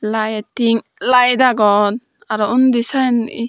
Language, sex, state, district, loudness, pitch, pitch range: Chakma, female, Tripura, Dhalai, -15 LUFS, 235 Hz, 215-250 Hz